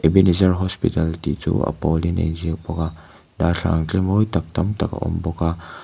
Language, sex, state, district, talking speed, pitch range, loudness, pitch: Mizo, male, Mizoram, Aizawl, 175 wpm, 80-95 Hz, -21 LUFS, 85 Hz